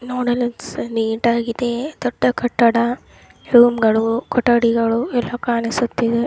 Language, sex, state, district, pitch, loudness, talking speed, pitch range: Kannada, male, Karnataka, Dharwad, 235 Hz, -18 LUFS, 105 wpm, 230-245 Hz